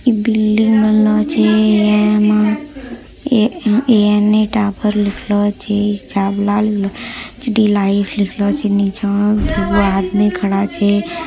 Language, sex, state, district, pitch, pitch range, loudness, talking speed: Angika, female, Bihar, Bhagalpur, 210 Hz, 205-220 Hz, -14 LUFS, 80 wpm